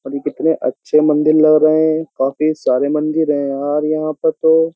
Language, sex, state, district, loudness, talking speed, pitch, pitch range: Hindi, male, Uttar Pradesh, Jyotiba Phule Nagar, -15 LUFS, 200 wpm, 155 Hz, 145-155 Hz